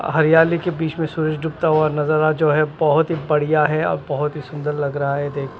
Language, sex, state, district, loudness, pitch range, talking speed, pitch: Hindi, male, Maharashtra, Washim, -19 LUFS, 150-160 Hz, 235 wpm, 155 Hz